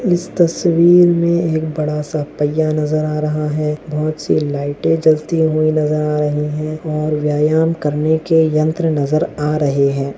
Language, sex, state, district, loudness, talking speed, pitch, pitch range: Hindi, male, Goa, North and South Goa, -16 LUFS, 170 wpm, 155 Hz, 150-160 Hz